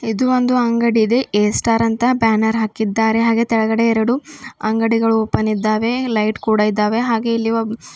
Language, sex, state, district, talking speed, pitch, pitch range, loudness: Kannada, female, Karnataka, Bidar, 160 wpm, 225 Hz, 220-235 Hz, -17 LUFS